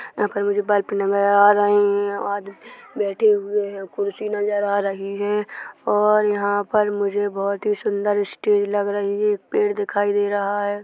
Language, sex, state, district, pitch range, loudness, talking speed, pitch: Hindi, male, Chhattisgarh, Korba, 200-210 Hz, -21 LUFS, 185 wpm, 205 Hz